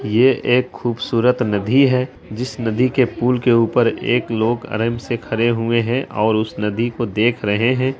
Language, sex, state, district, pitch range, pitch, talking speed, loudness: Hindi, female, Bihar, Araria, 115-125 Hz, 120 Hz, 185 wpm, -18 LUFS